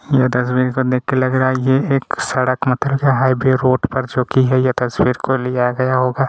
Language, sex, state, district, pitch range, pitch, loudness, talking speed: Hindi, male, Chhattisgarh, Kabirdham, 125-130 Hz, 130 Hz, -16 LUFS, 265 wpm